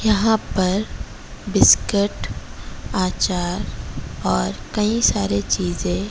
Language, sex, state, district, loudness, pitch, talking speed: Hindi, female, Odisha, Malkangiri, -20 LUFS, 180 Hz, 80 wpm